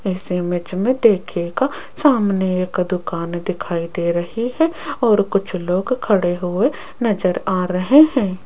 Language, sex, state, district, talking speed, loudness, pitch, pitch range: Hindi, female, Rajasthan, Jaipur, 140 wpm, -18 LUFS, 190 Hz, 180-235 Hz